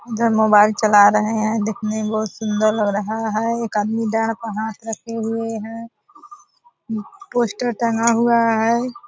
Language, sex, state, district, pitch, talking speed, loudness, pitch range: Hindi, female, Bihar, Purnia, 225 Hz, 160 wpm, -19 LUFS, 215-235 Hz